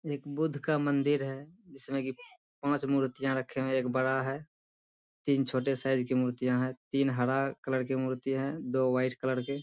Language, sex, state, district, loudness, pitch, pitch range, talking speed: Hindi, male, Bihar, Bhagalpur, -31 LUFS, 135 Hz, 130-140 Hz, 200 wpm